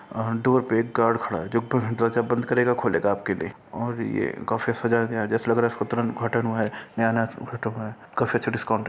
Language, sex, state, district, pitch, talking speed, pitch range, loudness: Hindi, male, Bihar, Kishanganj, 115 Hz, 210 wpm, 115-120 Hz, -25 LUFS